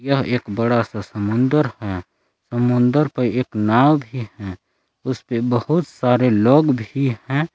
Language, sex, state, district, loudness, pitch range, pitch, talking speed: Hindi, male, Jharkhand, Palamu, -19 LUFS, 115-135 Hz, 125 Hz, 145 wpm